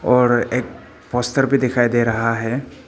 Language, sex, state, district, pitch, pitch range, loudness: Hindi, male, Arunachal Pradesh, Papum Pare, 120 Hz, 115-125 Hz, -18 LUFS